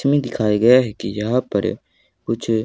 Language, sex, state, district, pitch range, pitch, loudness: Hindi, male, Haryana, Charkhi Dadri, 110-125 Hz, 115 Hz, -19 LUFS